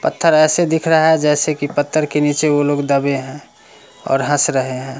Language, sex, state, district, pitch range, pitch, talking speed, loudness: Hindi, male, Bihar, Muzaffarpur, 140-155 Hz, 145 Hz, 215 wpm, -15 LUFS